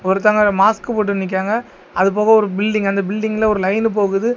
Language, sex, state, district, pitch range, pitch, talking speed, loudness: Tamil, male, Tamil Nadu, Kanyakumari, 195-220 Hz, 205 Hz, 180 wpm, -16 LUFS